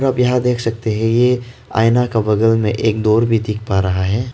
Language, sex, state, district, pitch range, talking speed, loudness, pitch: Hindi, male, Arunachal Pradesh, Lower Dibang Valley, 110-120 Hz, 235 wpm, -16 LUFS, 115 Hz